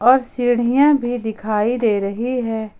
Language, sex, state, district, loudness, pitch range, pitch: Hindi, female, Jharkhand, Ranchi, -18 LUFS, 220-250 Hz, 240 Hz